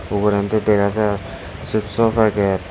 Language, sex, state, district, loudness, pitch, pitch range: Chakma, male, Tripura, West Tripura, -18 LUFS, 105 Hz, 95-110 Hz